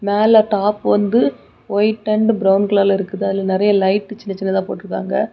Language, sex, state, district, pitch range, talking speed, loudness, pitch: Tamil, female, Tamil Nadu, Kanyakumari, 195-215 Hz, 155 wpm, -16 LUFS, 205 Hz